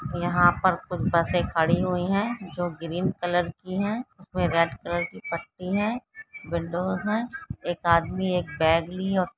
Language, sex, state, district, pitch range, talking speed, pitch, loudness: Hindi, female, Karnataka, Mysore, 170-195 Hz, 160 wpm, 180 Hz, -26 LUFS